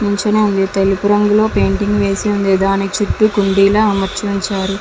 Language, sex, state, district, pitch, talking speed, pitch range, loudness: Telugu, female, Andhra Pradesh, Visakhapatnam, 200 Hz, 135 wpm, 195-205 Hz, -14 LUFS